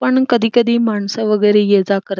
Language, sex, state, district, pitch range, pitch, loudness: Marathi, female, Karnataka, Belgaum, 200-235 Hz, 215 Hz, -14 LUFS